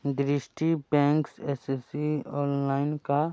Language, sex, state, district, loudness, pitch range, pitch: Hindi, male, Bihar, Muzaffarpur, -28 LUFS, 140-150 Hz, 145 Hz